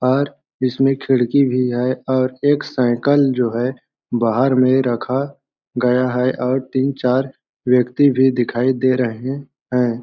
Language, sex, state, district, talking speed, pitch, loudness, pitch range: Hindi, male, Chhattisgarh, Balrampur, 145 wpm, 130 Hz, -18 LUFS, 125-135 Hz